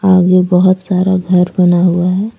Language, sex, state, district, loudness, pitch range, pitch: Hindi, female, Jharkhand, Deoghar, -11 LUFS, 180-185 Hz, 185 Hz